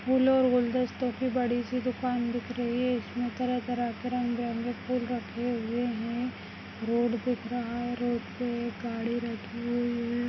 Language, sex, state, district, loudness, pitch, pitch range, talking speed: Hindi, male, Maharashtra, Nagpur, -30 LUFS, 240 Hz, 235-250 Hz, 170 wpm